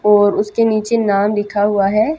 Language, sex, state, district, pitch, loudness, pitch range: Hindi, female, Haryana, Jhajjar, 210 Hz, -15 LUFS, 205-220 Hz